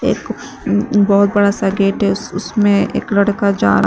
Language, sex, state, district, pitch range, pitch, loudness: Hindi, female, Uttar Pradesh, Shamli, 195-205 Hz, 200 Hz, -15 LUFS